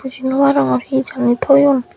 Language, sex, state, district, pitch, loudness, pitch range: Chakma, female, Tripura, Dhalai, 265 Hz, -14 LUFS, 245-275 Hz